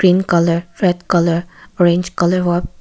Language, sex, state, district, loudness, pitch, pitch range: Nagamese, female, Nagaland, Kohima, -16 LUFS, 175 Hz, 170-180 Hz